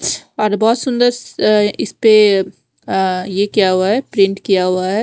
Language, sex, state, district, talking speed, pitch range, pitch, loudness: Hindi, female, Punjab, Fazilka, 180 wpm, 190-220 Hz, 205 Hz, -15 LUFS